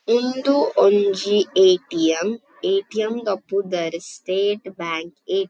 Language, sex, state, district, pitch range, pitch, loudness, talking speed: Tulu, female, Karnataka, Dakshina Kannada, 185-225 Hz, 200 Hz, -20 LUFS, 120 wpm